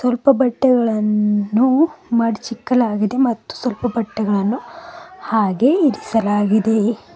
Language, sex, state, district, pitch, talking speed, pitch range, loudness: Kannada, female, Karnataka, Bidar, 230 Hz, 65 wpm, 215-255 Hz, -17 LUFS